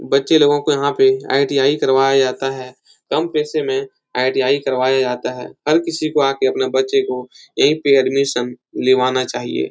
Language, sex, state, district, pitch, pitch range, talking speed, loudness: Hindi, male, Uttar Pradesh, Etah, 135 Hz, 130-145 Hz, 180 wpm, -17 LUFS